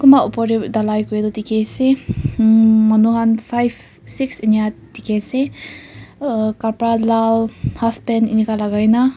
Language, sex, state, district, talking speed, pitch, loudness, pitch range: Nagamese, female, Nagaland, Kohima, 155 wpm, 225 Hz, -17 LUFS, 215-230 Hz